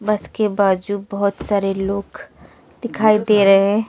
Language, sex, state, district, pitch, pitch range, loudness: Hindi, female, Delhi, New Delhi, 205 Hz, 200-210 Hz, -17 LUFS